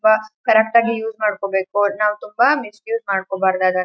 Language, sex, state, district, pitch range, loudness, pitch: Kannada, female, Karnataka, Chamarajanagar, 195-220 Hz, -18 LUFS, 210 Hz